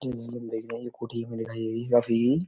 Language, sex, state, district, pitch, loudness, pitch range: Hindi, male, Uttar Pradesh, Etah, 115 Hz, -29 LUFS, 115-120 Hz